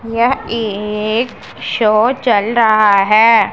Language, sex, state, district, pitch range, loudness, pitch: Hindi, female, Punjab, Pathankot, 215-230 Hz, -13 LUFS, 225 Hz